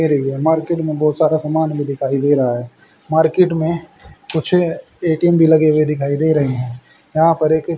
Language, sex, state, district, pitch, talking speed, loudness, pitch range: Hindi, male, Haryana, Charkhi Dadri, 155 Hz, 200 wpm, -16 LUFS, 145-160 Hz